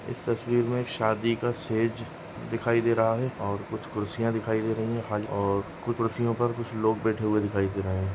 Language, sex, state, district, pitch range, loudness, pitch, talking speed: Hindi, male, Maharashtra, Nagpur, 105-115 Hz, -28 LUFS, 115 Hz, 230 wpm